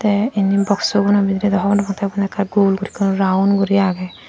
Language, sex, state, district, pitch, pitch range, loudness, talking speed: Chakma, female, Tripura, Dhalai, 200 Hz, 195-200 Hz, -17 LUFS, 225 wpm